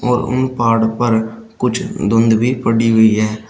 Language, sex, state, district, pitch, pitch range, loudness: Hindi, male, Uttar Pradesh, Shamli, 115 Hz, 110-120 Hz, -15 LUFS